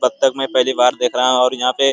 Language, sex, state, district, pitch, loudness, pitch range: Hindi, male, Bihar, Jamui, 125 Hz, -16 LUFS, 125-130 Hz